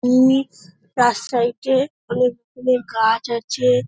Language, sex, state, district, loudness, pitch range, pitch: Bengali, female, West Bengal, Dakshin Dinajpur, -19 LUFS, 230-255 Hz, 245 Hz